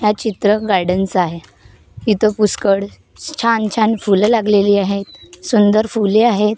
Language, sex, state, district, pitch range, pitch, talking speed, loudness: Marathi, female, Maharashtra, Gondia, 195-220 Hz, 210 Hz, 135 wpm, -15 LUFS